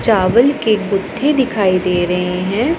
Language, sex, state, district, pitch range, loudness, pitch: Hindi, female, Punjab, Pathankot, 185-245 Hz, -15 LUFS, 205 Hz